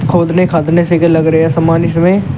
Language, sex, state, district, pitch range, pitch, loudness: Hindi, male, Uttar Pradesh, Shamli, 160-175 Hz, 170 Hz, -11 LUFS